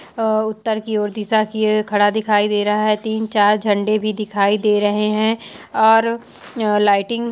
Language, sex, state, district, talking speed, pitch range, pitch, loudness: Hindi, female, Jharkhand, Jamtara, 180 wpm, 210-220 Hz, 215 Hz, -17 LUFS